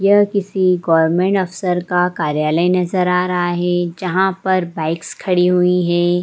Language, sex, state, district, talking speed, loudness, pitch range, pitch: Hindi, female, Jharkhand, Sahebganj, 155 wpm, -16 LUFS, 175-185 Hz, 180 Hz